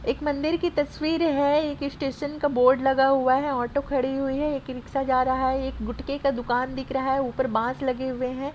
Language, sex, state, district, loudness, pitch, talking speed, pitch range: Hindi, female, Jharkhand, Sahebganj, -25 LUFS, 270 Hz, 230 wpm, 260-285 Hz